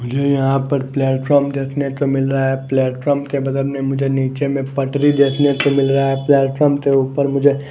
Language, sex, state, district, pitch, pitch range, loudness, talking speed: Hindi, male, Maharashtra, Mumbai Suburban, 135 Hz, 135-140 Hz, -17 LUFS, 210 wpm